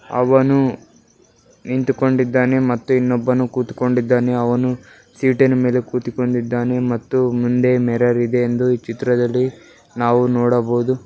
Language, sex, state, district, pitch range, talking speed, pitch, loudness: Kannada, male, Karnataka, Bellary, 120-130 Hz, 100 wpm, 125 Hz, -17 LUFS